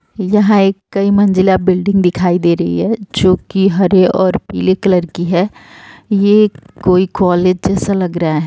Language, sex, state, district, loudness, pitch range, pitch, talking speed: Hindi, female, Uttar Pradesh, Etah, -13 LUFS, 180-195 Hz, 185 Hz, 165 wpm